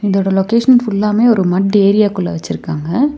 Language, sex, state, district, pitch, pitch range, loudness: Tamil, female, Tamil Nadu, Nilgiris, 200 Hz, 190-230 Hz, -13 LUFS